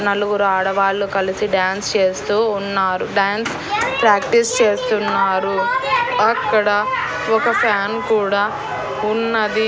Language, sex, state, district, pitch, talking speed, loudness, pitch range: Telugu, female, Andhra Pradesh, Annamaya, 205 Hz, 85 wpm, -17 LUFS, 195-230 Hz